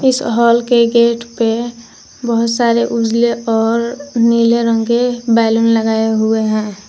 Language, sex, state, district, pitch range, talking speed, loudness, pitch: Hindi, female, Jharkhand, Garhwa, 225-235 Hz, 140 wpm, -14 LUFS, 235 Hz